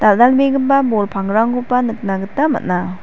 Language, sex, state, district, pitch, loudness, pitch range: Garo, female, Meghalaya, South Garo Hills, 235 Hz, -15 LUFS, 195-265 Hz